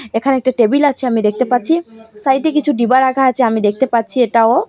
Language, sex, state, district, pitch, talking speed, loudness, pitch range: Bengali, female, Assam, Hailakandi, 255 Hz, 190 wpm, -14 LUFS, 230-270 Hz